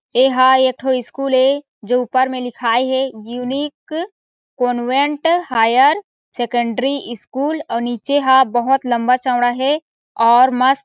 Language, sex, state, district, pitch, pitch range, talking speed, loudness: Chhattisgarhi, female, Chhattisgarh, Sarguja, 255 Hz, 245-275 Hz, 125 wpm, -16 LUFS